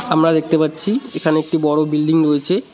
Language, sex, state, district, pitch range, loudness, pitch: Bengali, male, West Bengal, Cooch Behar, 155-165 Hz, -16 LUFS, 160 Hz